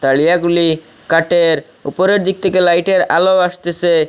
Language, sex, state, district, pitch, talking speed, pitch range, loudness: Bengali, male, Assam, Hailakandi, 175 Hz, 115 wpm, 160-185 Hz, -14 LUFS